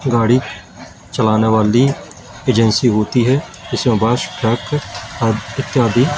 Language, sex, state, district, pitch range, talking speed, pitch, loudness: Hindi, male, Madhya Pradesh, Katni, 110-130 Hz, 95 wpm, 120 Hz, -16 LUFS